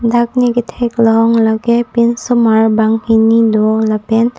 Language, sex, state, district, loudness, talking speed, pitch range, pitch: Karbi, female, Assam, Karbi Anglong, -12 LUFS, 110 wpm, 220-235 Hz, 230 Hz